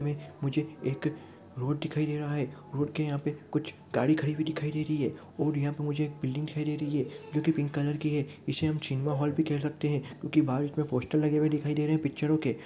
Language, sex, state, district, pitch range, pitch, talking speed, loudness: Hindi, male, Rajasthan, Churu, 145-155 Hz, 150 Hz, 265 wpm, -31 LUFS